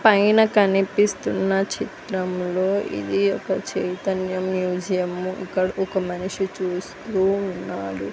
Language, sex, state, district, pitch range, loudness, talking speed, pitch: Telugu, female, Andhra Pradesh, Sri Satya Sai, 180-195 Hz, -23 LUFS, 90 wpm, 190 Hz